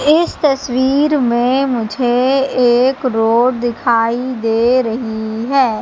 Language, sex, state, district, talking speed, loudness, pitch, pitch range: Hindi, female, Madhya Pradesh, Katni, 105 wpm, -14 LUFS, 250 Hz, 235-265 Hz